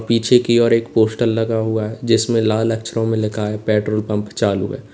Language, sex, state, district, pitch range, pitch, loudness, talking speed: Hindi, male, Uttar Pradesh, Saharanpur, 105-115 Hz, 110 Hz, -18 LUFS, 220 wpm